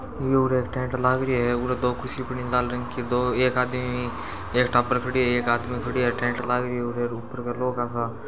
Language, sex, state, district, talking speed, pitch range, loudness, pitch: Marwari, male, Rajasthan, Churu, 190 wpm, 120-125 Hz, -25 LUFS, 125 Hz